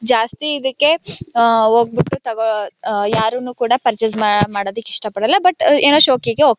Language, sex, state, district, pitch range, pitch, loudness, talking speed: Kannada, female, Karnataka, Chamarajanagar, 210-260 Hz, 230 Hz, -15 LUFS, 125 wpm